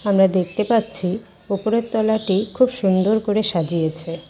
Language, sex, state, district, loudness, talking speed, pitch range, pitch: Bengali, female, West Bengal, Cooch Behar, -18 LUFS, 125 wpm, 180-220 Hz, 200 Hz